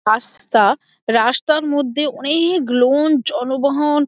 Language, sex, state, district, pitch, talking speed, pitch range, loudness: Bengali, female, West Bengal, Dakshin Dinajpur, 290 Hz, 105 wpm, 265-300 Hz, -17 LUFS